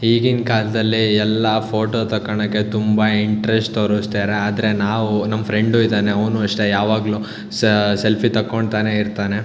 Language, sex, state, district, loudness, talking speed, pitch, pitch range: Kannada, male, Karnataka, Shimoga, -18 LUFS, 125 wpm, 105 Hz, 105-110 Hz